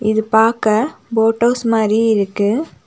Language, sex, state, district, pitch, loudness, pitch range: Tamil, female, Tamil Nadu, Nilgiris, 220 Hz, -15 LUFS, 215-230 Hz